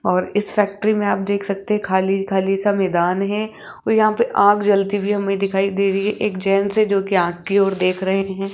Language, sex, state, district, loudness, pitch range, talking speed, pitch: Hindi, female, Rajasthan, Jaipur, -18 LUFS, 195-205 Hz, 225 wpm, 195 Hz